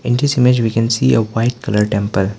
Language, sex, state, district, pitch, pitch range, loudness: English, male, Arunachal Pradesh, Lower Dibang Valley, 115 Hz, 105-125 Hz, -15 LUFS